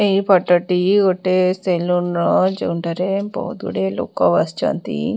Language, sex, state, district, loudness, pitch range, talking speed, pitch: Odia, female, Odisha, Khordha, -18 LUFS, 175-190 Hz, 130 wpm, 180 Hz